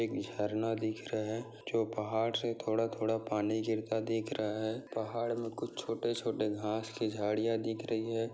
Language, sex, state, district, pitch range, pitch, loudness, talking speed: Hindi, male, Maharashtra, Sindhudurg, 110-115 Hz, 110 Hz, -35 LUFS, 170 wpm